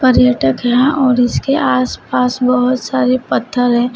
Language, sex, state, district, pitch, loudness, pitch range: Hindi, female, Uttar Pradesh, Shamli, 250 Hz, -14 LUFS, 240-255 Hz